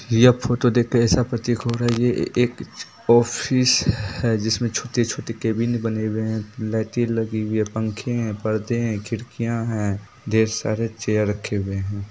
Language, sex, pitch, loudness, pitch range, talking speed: Bhojpuri, male, 115 Hz, -22 LUFS, 110-120 Hz, 180 wpm